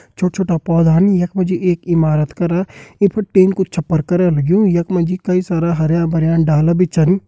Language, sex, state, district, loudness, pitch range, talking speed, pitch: Hindi, male, Uttarakhand, Uttarkashi, -15 LUFS, 165-185 Hz, 215 wpm, 175 Hz